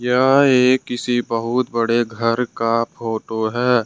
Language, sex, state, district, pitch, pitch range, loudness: Hindi, male, Jharkhand, Ranchi, 120 Hz, 115-125 Hz, -18 LUFS